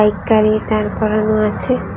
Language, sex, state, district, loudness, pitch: Bengali, female, Tripura, West Tripura, -16 LUFS, 215 Hz